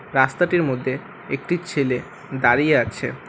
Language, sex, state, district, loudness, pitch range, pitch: Bengali, male, West Bengal, Alipurduar, -21 LUFS, 130-175 Hz, 140 Hz